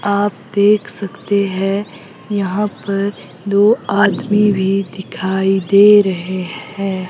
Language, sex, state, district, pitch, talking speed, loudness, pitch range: Hindi, female, Himachal Pradesh, Shimla, 200 Hz, 110 wpm, -15 LUFS, 190-205 Hz